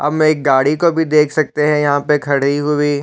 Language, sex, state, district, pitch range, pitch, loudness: Hindi, male, Chhattisgarh, Raigarh, 145-150 Hz, 150 Hz, -14 LUFS